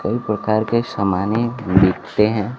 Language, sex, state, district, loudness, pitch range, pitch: Hindi, male, Bihar, Kaimur, -18 LUFS, 100-115 Hz, 105 Hz